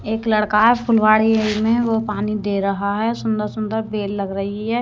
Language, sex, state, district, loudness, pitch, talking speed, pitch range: Hindi, female, Haryana, Rohtak, -19 LUFS, 215 Hz, 200 wpm, 205-225 Hz